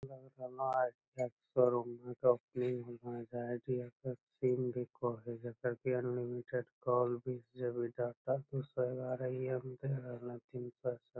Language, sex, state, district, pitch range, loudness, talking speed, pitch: Magahi, male, Bihar, Lakhisarai, 120-130 Hz, -39 LUFS, 80 wpm, 125 Hz